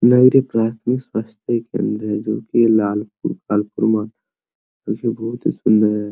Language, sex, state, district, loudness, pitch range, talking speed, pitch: Hindi, male, Uttar Pradesh, Hamirpur, -19 LUFS, 105-120 Hz, 100 wpm, 110 Hz